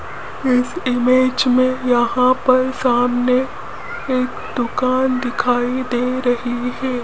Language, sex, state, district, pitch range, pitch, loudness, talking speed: Hindi, female, Rajasthan, Jaipur, 245-255 Hz, 250 Hz, -18 LUFS, 100 wpm